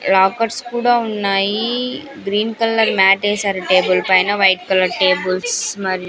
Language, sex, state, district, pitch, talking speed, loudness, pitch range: Telugu, female, Andhra Pradesh, Sri Satya Sai, 200 Hz, 130 wpm, -16 LUFS, 185-230 Hz